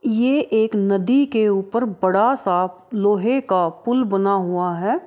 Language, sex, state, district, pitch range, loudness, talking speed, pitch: Maithili, female, Bihar, Araria, 190-245 Hz, -19 LUFS, 155 wpm, 205 Hz